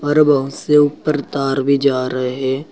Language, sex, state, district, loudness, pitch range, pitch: Hindi, male, Uttar Pradesh, Saharanpur, -16 LUFS, 135-145 Hz, 140 Hz